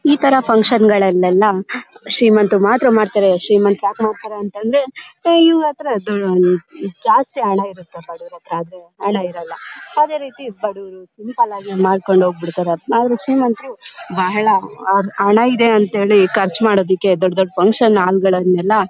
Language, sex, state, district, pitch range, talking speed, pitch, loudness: Kannada, female, Karnataka, Bellary, 185-230 Hz, 145 wpm, 200 Hz, -15 LUFS